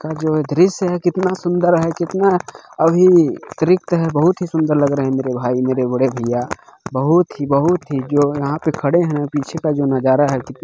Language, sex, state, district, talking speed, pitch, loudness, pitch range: Hindi, male, Chhattisgarh, Bilaspur, 210 wpm, 155 Hz, -17 LUFS, 140-175 Hz